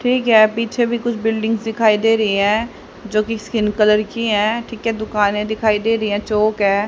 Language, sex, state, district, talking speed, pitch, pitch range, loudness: Hindi, male, Haryana, Rohtak, 210 wpm, 220 Hz, 210-225 Hz, -17 LUFS